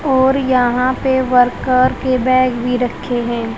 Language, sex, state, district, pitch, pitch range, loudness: Hindi, female, Haryana, Rohtak, 255 Hz, 245-260 Hz, -15 LUFS